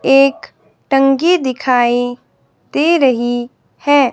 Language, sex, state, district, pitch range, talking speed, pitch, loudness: Hindi, female, Himachal Pradesh, Shimla, 245-280 Hz, 85 wpm, 270 Hz, -14 LUFS